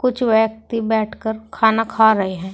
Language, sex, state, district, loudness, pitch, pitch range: Hindi, female, Uttar Pradesh, Saharanpur, -18 LUFS, 220 Hz, 220-225 Hz